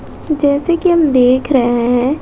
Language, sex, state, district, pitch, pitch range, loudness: Hindi, female, Bihar, West Champaran, 280 Hz, 250-310 Hz, -13 LUFS